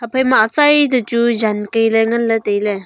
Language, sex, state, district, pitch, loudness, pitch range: Wancho, female, Arunachal Pradesh, Longding, 225 Hz, -14 LUFS, 215-250 Hz